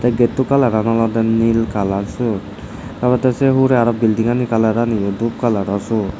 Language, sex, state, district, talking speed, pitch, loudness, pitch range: Chakma, male, Tripura, Dhalai, 135 wpm, 115 Hz, -16 LUFS, 110-120 Hz